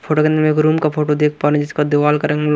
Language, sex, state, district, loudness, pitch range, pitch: Hindi, male, Haryana, Rohtak, -16 LUFS, 150-155 Hz, 150 Hz